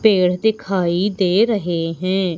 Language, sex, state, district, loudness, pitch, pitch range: Hindi, female, Madhya Pradesh, Umaria, -18 LUFS, 185 Hz, 180-205 Hz